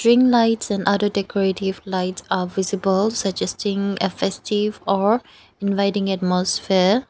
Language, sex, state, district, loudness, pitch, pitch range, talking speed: English, female, Nagaland, Dimapur, -21 LUFS, 200 Hz, 190-210 Hz, 120 wpm